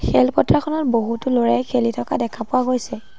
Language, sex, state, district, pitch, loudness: Assamese, female, Assam, Sonitpur, 225 Hz, -19 LUFS